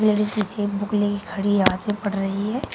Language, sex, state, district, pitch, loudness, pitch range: Hindi, female, Uttar Pradesh, Shamli, 205 Hz, -23 LUFS, 200-210 Hz